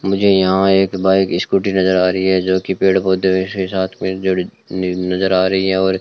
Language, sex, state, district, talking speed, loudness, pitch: Hindi, male, Rajasthan, Bikaner, 200 wpm, -16 LUFS, 95 Hz